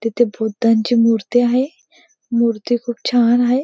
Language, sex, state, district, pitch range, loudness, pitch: Marathi, female, Maharashtra, Pune, 230-245 Hz, -17 LUFS, 240 Hz